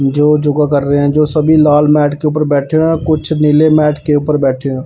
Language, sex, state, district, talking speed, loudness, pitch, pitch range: Hindi, male, Punjab, Pathankot, 260 wpm, -11 LUFS, 150 Hz, 145-155 Hz